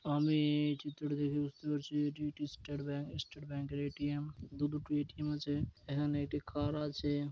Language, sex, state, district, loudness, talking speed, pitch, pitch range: Bengali, male, West Bengal, Jalpaiguri, -38 LUFS, 195 wpm, 145 Hz, 145-150 Hz